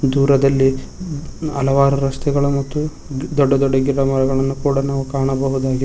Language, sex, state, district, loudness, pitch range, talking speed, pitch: Kannada, male, Karnataka, Koppal, -18 LUFS, 135-140 Hz, 115 wpm, 135 Hz